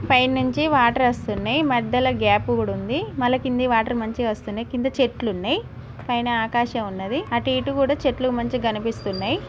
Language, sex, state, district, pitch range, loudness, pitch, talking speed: Telugu, female, Telangana, Nalgonda, 230-260 Hz, -22 LUFS, 245 Hz, 165 wpm